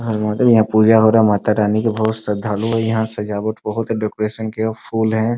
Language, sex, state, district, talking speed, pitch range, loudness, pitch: Hindi, male, Bihar, Muzaffarpur, 245 wpm, 105-110 Hz, -17 LUFS, 110 Hz